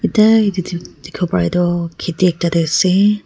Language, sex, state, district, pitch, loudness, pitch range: Nagamese, female, Nagaland, Kohima, 180 Hz, -15 LUFS, 175-205 Hz